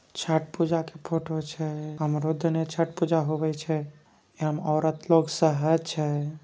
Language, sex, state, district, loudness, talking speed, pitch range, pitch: Angika, female, Bihar, Begusarai, -27 LUFS, 165 wpm, 155-165 Hz, 160 Hz